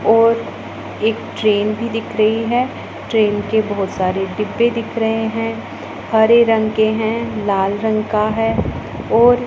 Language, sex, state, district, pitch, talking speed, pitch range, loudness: Hindi, female, Punjab, Pathankot, 220 Hz, 150 wpm, 210-225 Hz, -17 LUFS